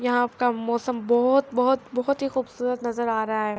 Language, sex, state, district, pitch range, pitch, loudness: Urdu, female, Andhra Pradesh, Anantapur, 235-255 Hz, 245 Hz, -24 LUFS